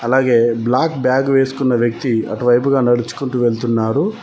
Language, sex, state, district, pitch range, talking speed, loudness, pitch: Telugu, male, Telangana, Mahabubabad, 120-135 Hz, 115 wpm, -16 LUFS, 125 Hz